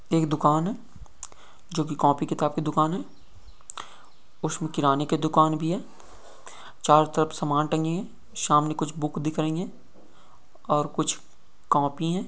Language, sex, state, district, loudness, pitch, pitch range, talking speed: Hindi, male, Maharashtra, Solapur, -25 LUFS, 155 Hz, 150-160 Hz, 145 wpm